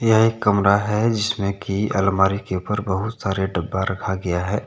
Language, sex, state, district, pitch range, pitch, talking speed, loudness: Hindi, male, Jharkhand, Deoghar, 95-105 Hz, 100 Hz, 180 wpm, -21 LUFS